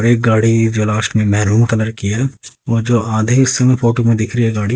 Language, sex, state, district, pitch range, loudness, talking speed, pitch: Hindi, male, Haryana, Jhajjar, 110-120 Hz, -14 LUFS, 250 wpm, 115 Hz